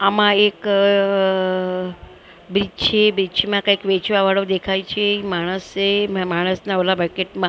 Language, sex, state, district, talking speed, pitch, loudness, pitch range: Gujarati, female, Maharashtra, Mumbai Suburban, 135 wpm, 195 Hz, -18 LUFS, 185-200 Hz